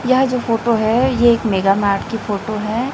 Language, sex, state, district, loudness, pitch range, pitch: Hindi, female, Chhattisgarh, Raipur, -17 LUFS, 210-245 Hz, 225 Hz